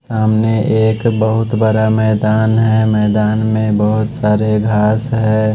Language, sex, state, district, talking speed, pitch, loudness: Hindi, male, Odisha, Malkangiri, 130 wpm, 110 Hz, -14 LUFS